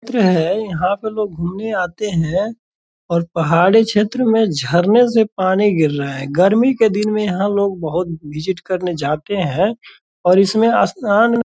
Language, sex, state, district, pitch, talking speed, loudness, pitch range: Hindi, male, Bihar, Purnia, 195 Hz, 175 wpm, -16 LUFS, 170-220 Hz